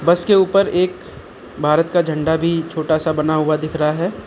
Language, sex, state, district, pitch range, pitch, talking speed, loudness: Hindi, male, Uttar Pradesh, Lucknow, 155-175 Hz, 160 Hz, 195 wpm, -17 LUFS